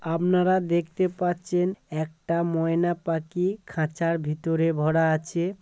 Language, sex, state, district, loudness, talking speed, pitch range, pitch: Bengali, male, West Bengal, Kolkata, -25 LUFS, 105 wpm, 160-180 Hz, 170 Hz